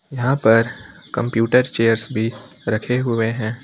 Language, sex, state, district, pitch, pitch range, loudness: Hindi, male, Uttar Pradesh, Lucknow, 115 Hz, 110-125 Hz, -19 LUFS